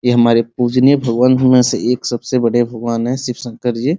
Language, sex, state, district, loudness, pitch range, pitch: Hindi, male, Bihar, Muzaffarpur, -15 LUFS, 120-125 Hz, 120 Hz